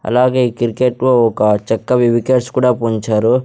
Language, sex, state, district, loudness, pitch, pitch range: Telugu, male, Andhra Pradesh, Sri Satya Sai, -14 LUFS, 120 Hz, 110-125 Hz